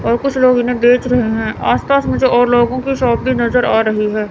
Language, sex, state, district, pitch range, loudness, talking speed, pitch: Hindi, female, Chandigarh, Chandigarh, 230-255 Hz, -14 LUFS, 250 wpm, 245 Hz